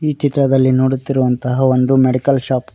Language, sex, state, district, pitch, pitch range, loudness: Kannada, male, Karnataka, Koppal, 130 Hz, 130-135 Hz, -15 LUFS